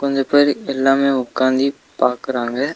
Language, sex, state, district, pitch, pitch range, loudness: Tamil, male, Tamil Nadu, Nilgiris, 135 Hz, 130-140 Hz, -17 LUFS